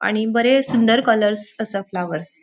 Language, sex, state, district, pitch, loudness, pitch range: Konkani, female, Goa, North and South Goa, 215 Hz, -19 LUFS, 195-235 Hz